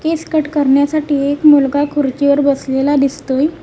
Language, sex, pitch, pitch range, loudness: Marathi, female, 285 Hz, 280-300 Hz, -14 LUFS